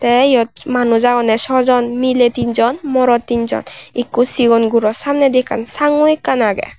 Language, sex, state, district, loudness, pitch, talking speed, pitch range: Chakma, female, Tripura, West Tripura, -14 LUFS, 245 Hz, 170 wpm, 235-260 Hz